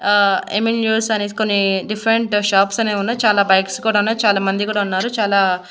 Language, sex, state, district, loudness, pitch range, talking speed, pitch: Telugu, female, Andhra Pradesh, Annamaya, -17 LUFS, 195-220 Hz, 180 wpm, 205 Hz